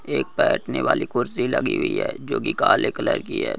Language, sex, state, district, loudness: Hindi, male, Uttarakhand, Uttarkashi, -22 LUFS